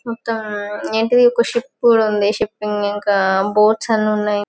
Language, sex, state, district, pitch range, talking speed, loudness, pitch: Telugu, female, Telangana, Karimnagar, 205-230 Hz, 145 wpm, -17 LUFS, 215 Hz